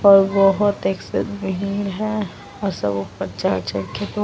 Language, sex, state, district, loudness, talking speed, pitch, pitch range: Hindi, female, Bihar, Vaishali, -21 LUFS, 155 wpm, 195 Hz, 185-205 Hz